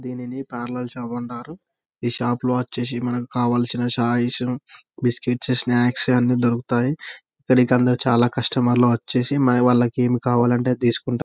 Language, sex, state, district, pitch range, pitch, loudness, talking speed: Telugu, male, Telangana, Karimnagar, 120-125 Hz, 125 Hz, -21 LUFS, 145 wpm